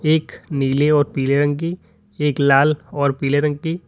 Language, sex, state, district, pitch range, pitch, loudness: Hindi, male, Uttar Pradesh, Lalitpur, 140-155 Hz, 145 Hz, -18 LUFS